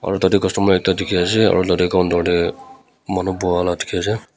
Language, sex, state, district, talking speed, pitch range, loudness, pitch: Nagamese, female, Nagaland, Kohima, 180 wpm, 90-100 Hz, -18 LUFS, 95 Hz